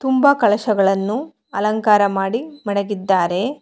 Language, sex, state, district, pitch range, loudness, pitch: Kannada, female, Karnataka, Bangalore, 200-260 Hz, -18 LUFS, 210 Hz